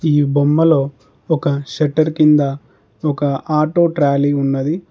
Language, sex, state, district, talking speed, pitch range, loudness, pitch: Telugu, male, Telangana, Mahabubabad, 110 wpm, 140-155 Hz, -16 LUFS, 145 Hz